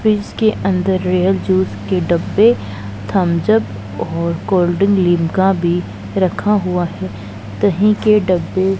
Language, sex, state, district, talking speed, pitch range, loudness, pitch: Hindi, female, Punjab, Pathankot, 145 wpm, 170-195 Hz, -16 LUFS, 185 Hz